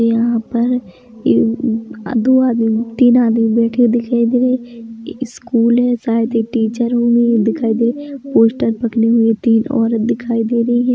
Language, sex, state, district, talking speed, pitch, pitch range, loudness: Hindi, female, Chhattisgarh, Bilaspur, 170 wpm, 235 Hz, 230-245 Hz, -15 LUFS